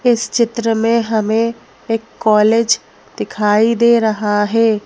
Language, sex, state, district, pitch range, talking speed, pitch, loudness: Hindi, female, Madhya Pradesh, Bhopal, 215-230 Hz, 125 wpm, 225 Hz, -15 LUFS